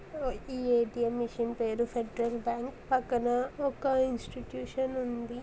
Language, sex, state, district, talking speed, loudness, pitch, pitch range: Telugu, female, Andhra Pradesh, Srikakulam, 155 wpm, -32 LUFS, 240 Hz, 235-260 Hz